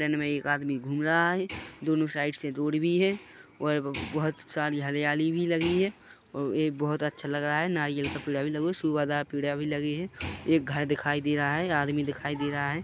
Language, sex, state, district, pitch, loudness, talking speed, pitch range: Hindi, male, Chhattisgarh, Rajnandgaon, 150 Hz, -29 LUFS, 235 wpm, 145-160 Hz